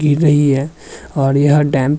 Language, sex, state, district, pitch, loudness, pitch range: Hindi, male, Uttar Pradesh, Hamirpur, 145 Hz, -14 LUFS, 135-150 Hz